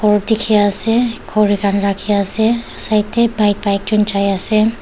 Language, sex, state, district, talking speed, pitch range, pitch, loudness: Nagamese, female, Nagaland, Dimapur, 110 wpm, 200-220 Hz, 210 Hz, -15 LUFS